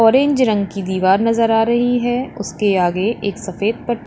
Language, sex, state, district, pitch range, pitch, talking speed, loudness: Hindi, female, Uttar Pradesh, Lalitpur, 200-240 Hz, 225 Hz, 190 wpm, -17 LUFS